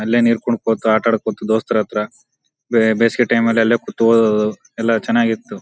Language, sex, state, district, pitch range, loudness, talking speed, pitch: Kannada, male, Karnataka, Bijapur, 110-120 Hz, -17 LUFS, 180 wpm, 115 Hz